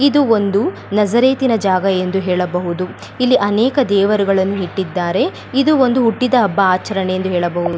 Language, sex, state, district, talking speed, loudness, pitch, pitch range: Kannada, female, Karnataka, Bellary, 140 wpm, -15 LUFS, 200 Hz, 185-245 Hz